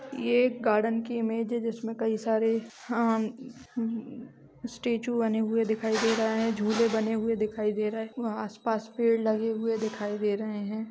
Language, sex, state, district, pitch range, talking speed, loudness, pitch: Hindi, female, Chhattisgarh, Raigarh, 220-230 Hz, 180 wpm, -29 LUFS, 225 Hz